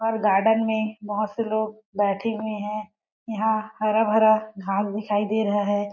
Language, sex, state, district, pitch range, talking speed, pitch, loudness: Hindi, female, Chhattisgarh, Balrampur, 205-220 Hz, 170 wpm, 215 Hz, -24 LUFS